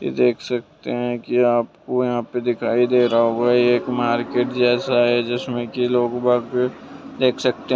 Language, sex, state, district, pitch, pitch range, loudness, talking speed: Hindi, male, Bihar, Purnia, 120 Hz, 120-125 Hz, -20 LUFS, 180 wpm